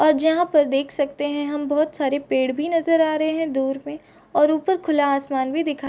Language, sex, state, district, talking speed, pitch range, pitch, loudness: Hindi, female, Bihar, Supaul, 245 wpm, 280-315 Hz, 295 Hz, -21 LUFS